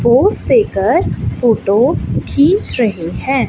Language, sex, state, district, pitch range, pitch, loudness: Hindi, female, Chandigarh, Chandigarh, 215-310 Hz, 250 Hz, -14 LUFS